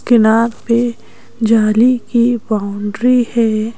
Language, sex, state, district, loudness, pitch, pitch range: Hindi, female, Madhya Pradesh, Bhopal, -14 LUFS, 230 Hz, 220-240 Hz